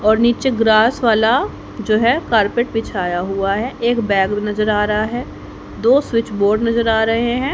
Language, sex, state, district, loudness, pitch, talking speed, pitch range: Hindi, female, Haryana, Jhajjar, -16 LUFS, 225 Hz, 185 wpm, 210-240 Hz